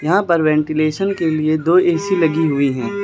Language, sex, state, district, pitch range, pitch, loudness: Hindi, male, Uttar Pradesh, Lucknow, 155-180 Hz, 160 Hz, -16 LUFS